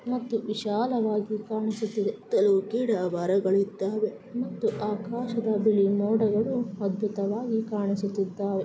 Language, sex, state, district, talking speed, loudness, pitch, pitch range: Kannada, female, Karnataka, Mysore, 90 wpm, -27 LUFS, 210 Hz, 200-225 Hz